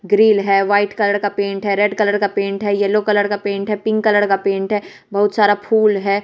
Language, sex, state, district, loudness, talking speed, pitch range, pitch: Hindi, female, Bihar, West Champaran, -16 LUFS, 250 wpm, 200-210 Hz, 205 Hz